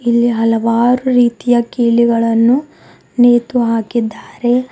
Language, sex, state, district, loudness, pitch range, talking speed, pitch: Kannada, female, Karnataka, Bidar, -13 LUFS, 230-245 Hz, 75 wpm, 240 Hz